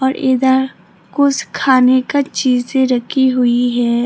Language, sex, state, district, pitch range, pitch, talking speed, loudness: Hindi, female, Tripura, Dhalai, 245-265 Hz, 260 Hz, 135 wpm, -14 LUFS